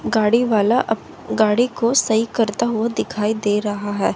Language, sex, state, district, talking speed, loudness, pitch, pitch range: Hindi, female, Haryana, Jhajjar, 160 wpm, -19 LUFS, 220 Hz, 210-235 Hz